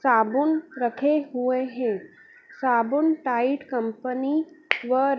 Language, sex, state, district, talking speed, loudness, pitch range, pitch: Hindi, female, Madhya Pradesh, Dhar, 95 wpm, -24 LUFS, 245-285 Hz, 260 Hz